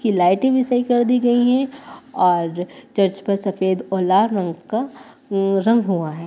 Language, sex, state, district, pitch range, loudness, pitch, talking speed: Hindi, female, Jharkhand, Jamtara, 185-245 Hz, -19 LUFS, 200 Hz, 180 wpm